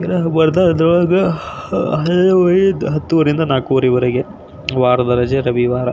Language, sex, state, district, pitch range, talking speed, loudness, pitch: Kannada, male, Karnataka, Belgaum, 125-175 Hz, 60 wpm, -15 LUFS, 155 Hz